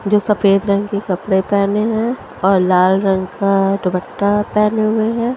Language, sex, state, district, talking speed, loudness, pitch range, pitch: Hindi, female, Haryana, Charkhi Dadri, 180 wpm, -16 LUFS, 195-210 Hz, 200 Hz